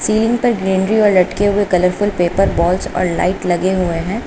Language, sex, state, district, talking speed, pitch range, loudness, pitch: Hindi, female, Uttar Pradesh, Lucknow, 195 wpm, 180-205 Hz, -15 LUFS, 190 Hz